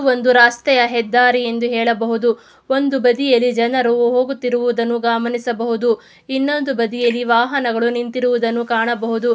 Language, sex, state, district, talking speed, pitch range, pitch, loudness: Kannada, female, Karnataka, Mysore, 95 wpm, 235-245 Hz, 240 Hz, -16 LUFS